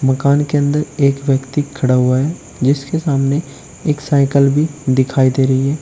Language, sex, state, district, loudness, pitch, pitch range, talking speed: Hindi, male, Uttar Pradesh, Shamli, -15 LUFS, 140 Hz, 135-145 Hz, 175 wpm